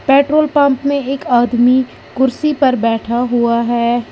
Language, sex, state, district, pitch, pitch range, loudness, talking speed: Hindi, female, Uttar Pradesh, Lalitpur, 255 Hz, 240-280 Hz, -14 LUFS, 145 wpm